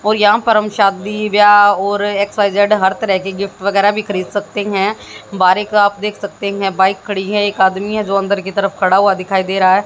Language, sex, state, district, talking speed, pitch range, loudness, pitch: Hindi, female, Haryana, Jhajjar, 255 wpm, 195-205 Hz, -14 LUFS, 200 Hz